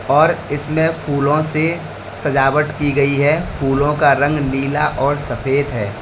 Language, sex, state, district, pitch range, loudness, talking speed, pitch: Hindi, male, Uttar Pradesh, Lalitpur, 135-150 Hz, -17 LUFS, 150 wpm, 145 Hz